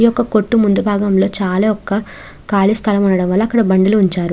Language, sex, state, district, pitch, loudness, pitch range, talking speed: Telugu, female, Andhra Pradesh, Krishna, 205 Hz, -14 LUFS, 190-215 Hz, 220 wpm